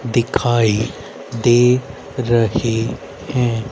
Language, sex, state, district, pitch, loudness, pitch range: Hindi, male, Haryana, Rohtak, 120 Hz, -17 LUFS, 115-125 Hz